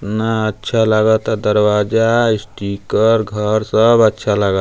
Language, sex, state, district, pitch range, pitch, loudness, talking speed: Bhojpuri, male, Uttar Pradesh, Deoria, 105-115 Hz, 110 Hz, -15 LUFS, 115 wpm